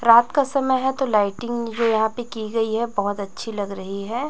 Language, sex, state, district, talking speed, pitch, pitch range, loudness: Hindi, female, Chhattisgarh, Raipur, 235 wpm, 230 Hz, 210-240 Hz, -22 LUFS